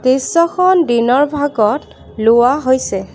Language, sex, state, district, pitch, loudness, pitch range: Assamese, female, Assam, Kamrup Metropolitan, 260 Hz, -13 LUFS, 235-295 Hz